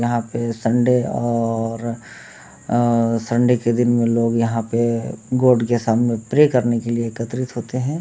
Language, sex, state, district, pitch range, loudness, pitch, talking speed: Hindi, male, Jharkhand, Sahebganj, 115-120 Hz, -19 LUFS, 120 Hz, 150 wpm